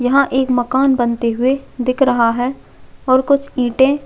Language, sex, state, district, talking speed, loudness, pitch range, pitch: Hindi, female, Chhattisgarh, Jashpur, 175 wpm, -16 LUFS, 245-270 Hz, 255 Hz